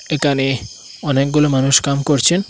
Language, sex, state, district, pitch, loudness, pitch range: Bengali, male, Assam, Hailakandi, 140 Hz, -16 LUFS, 135-150 Hz